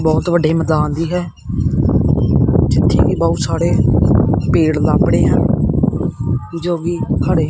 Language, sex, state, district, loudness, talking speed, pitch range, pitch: Punjabi, male, Punjab, Kapurthala, -15 LUFS, 130 wpm, 155-175 Hz, 165 Hz